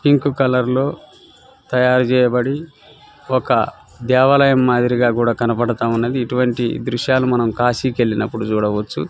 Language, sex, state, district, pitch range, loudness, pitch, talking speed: Telugu, male, Telangana, Nalgonda, 120-130 Hz, -17 LUFS, 125 Hz, 105 wpm